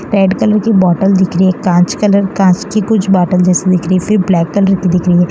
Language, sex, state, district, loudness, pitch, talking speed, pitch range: Hindi, female, Gujarat, Valsad, -11 LUFS, 190 Hz, 270 wpm, 180-200 Hz